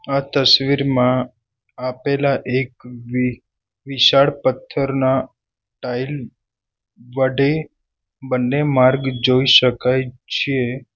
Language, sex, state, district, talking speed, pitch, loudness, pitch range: Gujarati, male, Gujarat, Valsad, 75 wpm, 130 Hz, -17 LUFS, 125-135 Hz